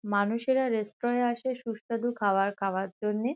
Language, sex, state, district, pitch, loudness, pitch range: Bengali, female, West Bengal, Kolkata, 225 Hz, -29 LUFS, 205-240 Hz